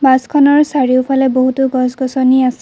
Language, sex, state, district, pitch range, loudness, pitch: Assamese, female, Assam, Kamrup Metropolitan, 255-270 Hz, -12 LUFS, 265 Hz